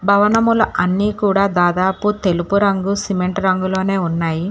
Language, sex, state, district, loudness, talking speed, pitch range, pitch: Telugu, female, Telangana, Hyderabad, -17 LUFS, 120 wpm, 180-200 Hz, 195 Hz